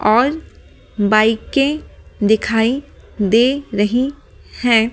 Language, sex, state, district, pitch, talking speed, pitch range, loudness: Hindi, female, Delhi, New Delhi, 230 Hz, 75 wpm, 215-270 Hz, -17 LUFS